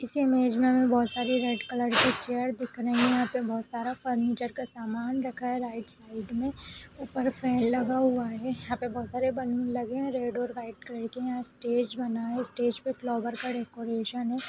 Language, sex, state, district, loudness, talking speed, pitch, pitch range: Hindi, female, Uttar Pradesh, Etah, -29 LUFS, 230 wpm, 245 Hz, 235-255 Hz